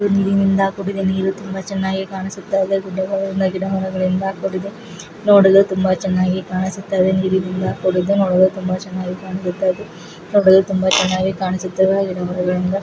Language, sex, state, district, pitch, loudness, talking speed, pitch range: Kannada, female, Karnataka, Chamarajanagar, 190 Hz, -18 LUFS, 130 wpm, 185-195 Hz